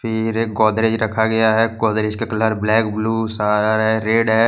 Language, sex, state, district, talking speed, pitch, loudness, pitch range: Hindi, male, Jharkhand, Deoghar, 175 wpm, 110 Hz, -18 LUFS, 110-115 Hz